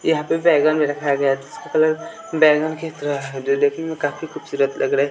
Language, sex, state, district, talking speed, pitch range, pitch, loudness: Hindi, male, Bihar, West Champaran, 225 wpm, 140-160 Hz, 150 Hz, -20 LUFS